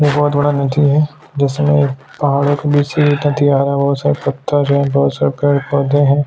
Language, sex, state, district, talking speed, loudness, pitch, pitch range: Hindi, male, Chhattisgarh, Sukma, 190 wpm, -14 LUFS, 145 Hz, 140-145 Hz